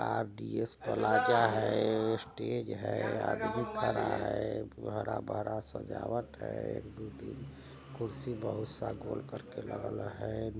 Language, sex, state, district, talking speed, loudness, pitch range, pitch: Hindi, male, Bihar, Vaishali, 115 wpm, -35 LUFS, 100-115 Hz, 110 Hz